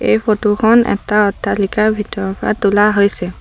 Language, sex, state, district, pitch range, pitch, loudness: Assamese, female, Assam, Sonitpur, 200-215 Hz, 210 Hz, -14 LUFS